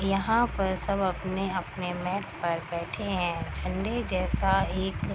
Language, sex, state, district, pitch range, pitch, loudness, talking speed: Hindi, female, Bihar, East Champaran, 180-195 Hz, 190 Hz, -29 LUFS, 130 wpm